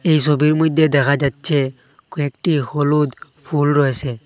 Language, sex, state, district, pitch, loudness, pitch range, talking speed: Bengali, male, Assam, Hailakandi, 145 Hz, -17 LUFS, 140-150 Hz, 125 wpm